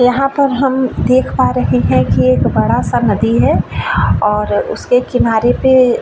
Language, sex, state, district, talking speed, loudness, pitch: Hindi, female, Bihar, Vaishali, 180 wpm, -13 LUFS, 245 Hz